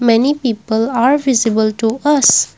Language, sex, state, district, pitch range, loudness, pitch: English, female, Assam, Kamrup Metropolitan, 225-265 Hz, -14 LUFS, 235 Hz